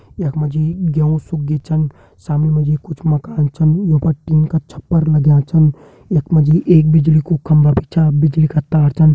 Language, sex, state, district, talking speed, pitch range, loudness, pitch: Hindi, male, Uttarakhand, Uttarkashi, 210 wpm, 150-160 Hz, -15 LUFS, 155 Hz